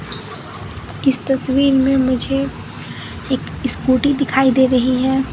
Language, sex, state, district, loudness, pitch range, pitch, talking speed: Hindi, female, Bihar, Katihar, -16 LUFS, 260-270 Hz, 265 Hz, 110 wpm